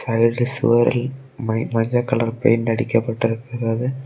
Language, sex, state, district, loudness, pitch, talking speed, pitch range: Tamil, male, Tamil Nadu, Kanyakumari, -20 LUFS, 115 Hz, 120 wpm, 115-125 Hz